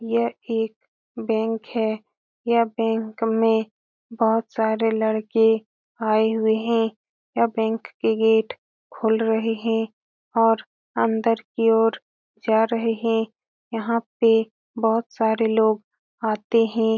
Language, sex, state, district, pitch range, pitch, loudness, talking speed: Hindi, female, Bihar, Lakhisarai, 220-230 Hz, 225 Hz, -22 LUFS, 120 wpm